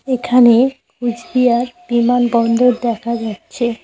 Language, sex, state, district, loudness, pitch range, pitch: Bengali, female, West Bengal, Cooch Behar, -15 LUFS, 235-250 Hz, 240 Hz